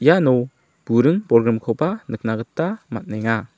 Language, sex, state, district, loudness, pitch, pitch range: Garo, male, Meghalaya, South Garo Hills, -20 LUFS, 125 Hz, 115-160 Hz